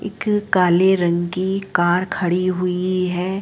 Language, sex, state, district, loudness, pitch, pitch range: Hindi, female, Uttar Pradesh, Jalaun, -19 LUFS, 185 Hz, 180-190 Hz